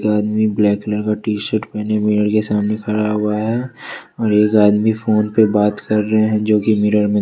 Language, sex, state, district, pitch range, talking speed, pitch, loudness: Hindi, male, Jharkhand, Ranchi, 105-110 Hz, 230 wpm, 105 Hz, -16 LUFS